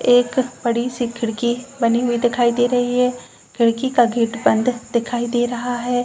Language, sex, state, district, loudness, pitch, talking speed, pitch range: Hindi, female, Uttar Pradesh, Jalaun, -19 LUFS, 240 Hz, 180 wpm, 235-245 Hz